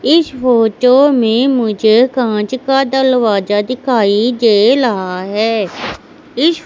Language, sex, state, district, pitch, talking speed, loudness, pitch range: Hindi, female, Madhya Pradesh, Katni, 245 Hz, 110 wpm, -12 LUFS, 215-260 Hz